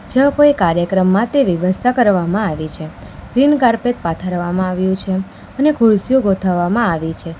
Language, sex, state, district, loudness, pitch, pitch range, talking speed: Gujarati, female, Gujarat, Valsad, -15 LUFS, 190 Hz, 175-245 Hz, 145 wpm